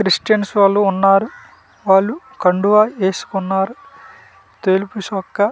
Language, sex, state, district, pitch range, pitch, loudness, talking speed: Telugu, male, Andhra Pradesh, Manyam, 190-215 Hz, 200 Hz, -16 LUFS, 100 wpm